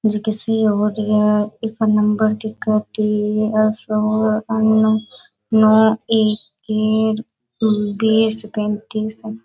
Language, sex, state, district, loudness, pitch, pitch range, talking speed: Rajasthani, female, Rajasthan, Nagaur, -18 LUFS, 215 Hz, 215-220 Hz, 65 wpm